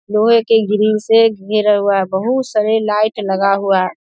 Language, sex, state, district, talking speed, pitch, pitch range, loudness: Hindi, female, Bihar, Saharsa, 205 wpm, 210 Hz, 200-220 Hz, -14 LUFS